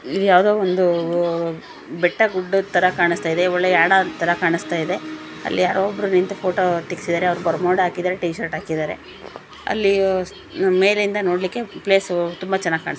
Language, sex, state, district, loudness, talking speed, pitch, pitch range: Kannada, female, Karnataka, Dakshina Kannada, -19 LUFS, 150 wpm, 180 Hz, 175-195 Hz